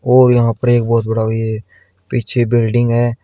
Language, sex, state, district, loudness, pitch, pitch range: Hindi, male, Uttar Pradesh, Shamli, -15 LUFS, 120 Hz, 115-120 Hz